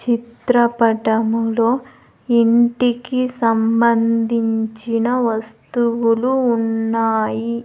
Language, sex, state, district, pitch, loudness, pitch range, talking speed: Telugu, female, Andhra Pradesh, Sri Satya Sai, 230 Hz, -17 LUFS, 225-240 Hz, 40 wpm